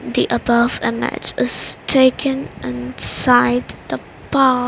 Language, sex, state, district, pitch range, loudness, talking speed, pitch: English, female, Haryana, Rohtak, 235-260 Hz, -17 LUFS, 115 wpm, 245 Hz